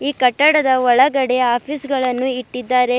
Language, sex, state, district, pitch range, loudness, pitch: Kannada, female, Karnataka, Bidar, 250-275 Hz, -16 LUFS, 255 Hz